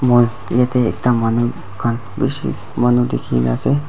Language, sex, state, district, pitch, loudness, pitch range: Nagamese, male, Nagaland, Dimapur, 120 Hz, -17 LUFS, 115-125 Hz